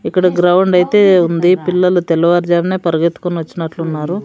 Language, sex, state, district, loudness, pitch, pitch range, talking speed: Telugu, female, Andhra Pradesh, Sri Satya Sai, -13 LUFS, 175 Hz, 170-180 Hz, 115 wpm